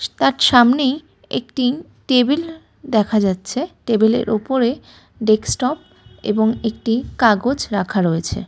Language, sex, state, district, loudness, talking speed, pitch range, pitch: Bengali, female, West Bengal, Malda, -18 LUFS, 115 wpm, 215-265 Hz, 235 Hz